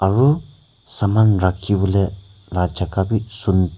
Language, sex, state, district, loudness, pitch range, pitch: Nagamese, male, Nagaland, Kohima, -19 LUFS, 95-110 Hz, 100 Hz